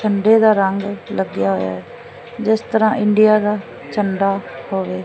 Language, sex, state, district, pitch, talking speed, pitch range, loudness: Punjabi, female, Punjab, Fazilka, 205 Hz, 140 wpm, 190-215 Hz, -17 LUFS